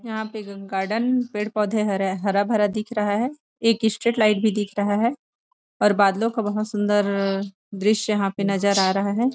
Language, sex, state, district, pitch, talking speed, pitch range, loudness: Hindi, female, Chhattisgarh, Rajnandgaon, 210 Hz, 185 wpm, 200-220 Hz, -22 LUFS